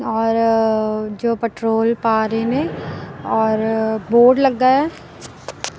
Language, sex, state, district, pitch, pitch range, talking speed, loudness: Punjabi, female, Punjab, Kapurthala, 225 Hz, 220-235 Hz, 105 wpm, -17 LUFS